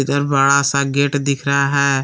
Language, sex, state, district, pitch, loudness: Hindi, male, Jharkhand, Palamu, 140 Hz, -16 LUFS